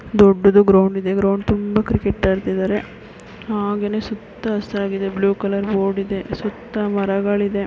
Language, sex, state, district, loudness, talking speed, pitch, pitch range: Kannada, female, Karnataka, Mysore, -19 LUFS, 140 wpm, 200 Hz, 195-205 Hz